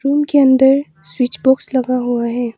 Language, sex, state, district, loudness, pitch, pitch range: Hindi, female, Arunachal Pradesh, Papum Pare, -15 LUFS, 265 Hz, 245-275 Hz